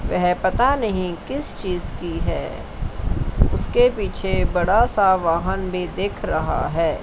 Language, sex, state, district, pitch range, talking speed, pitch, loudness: Hindi, female, Chandigarh, Chandigarh, 180-230 Hz, 135 wpm, 190 Hz, -22 LUFS